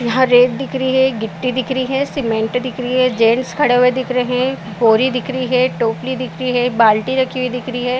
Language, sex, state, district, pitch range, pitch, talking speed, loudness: Hindi, female, Maharashtra, Aurangabad, 245-260 Hz, 250 Hz, 245 wpm, -16 LUFS